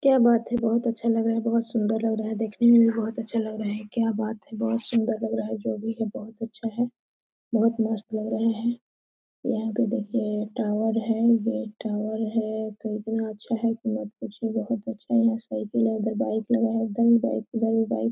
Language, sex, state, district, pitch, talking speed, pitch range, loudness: Hindi, female, Jharkhand, Sahebganj, 225 Hz, 230 wpm, 215-230 Hz, -26 LUFS